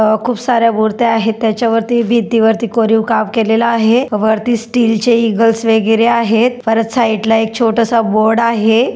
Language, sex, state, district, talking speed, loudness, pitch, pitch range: Marathi, female, Maharashtra, Dhule, 160 wpm, -13 LUFS, 225 Hz, 220-235 Hz